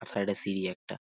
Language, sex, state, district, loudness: Bengali, male, West Bengal, Paschim Medinipur, -33 LUFS